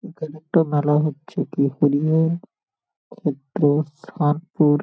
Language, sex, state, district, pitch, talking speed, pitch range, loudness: Bengali, male, West Bengal, Paschim Medinipur, 150 Hz, 60 wpm, 145-160 Hz, -21 LUFS